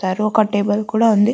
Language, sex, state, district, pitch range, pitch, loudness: Telugu, female, Andhra Pradesh, Guntur, 205-220 Hz, 215 Hz, -17 LUFS